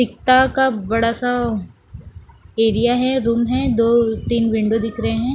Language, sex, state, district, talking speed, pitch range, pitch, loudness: Hindi, female, Bihar, West Champaran, 155 wpm, 225-250 Hz, 235 Hz, -17 LUFS